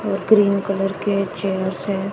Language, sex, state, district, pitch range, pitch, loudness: Hindi, female, Chhattisgarh, Raipur, 195-200 Hz, 195 Hz, -20 LUFS